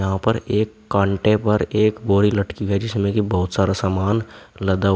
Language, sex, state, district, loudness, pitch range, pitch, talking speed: Hindi, male, Uttar Pradesh, Shamli, -20 LUFS, 95-105 Hz, 100 Hz, 195 wpm